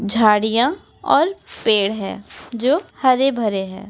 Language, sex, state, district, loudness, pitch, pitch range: Hindi, female, Uttar Pradesh, Etah, -18 LUFS, 230 Hz, 210-270 Hz